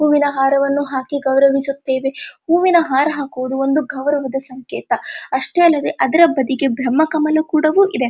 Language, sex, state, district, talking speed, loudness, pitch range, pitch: Kannada, female, Karnataka, Dharwad, 120 wpm, -16 LUFS, 270-310 Hz, 280 Hz